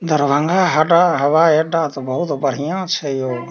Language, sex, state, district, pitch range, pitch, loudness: Maithili, male, Bihar, Darbhanga, 140-170 Hz, 155 Hz, -16 LUFS